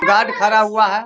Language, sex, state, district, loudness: Hindi, male, Bihar, Sitamarhi, -15 LUFS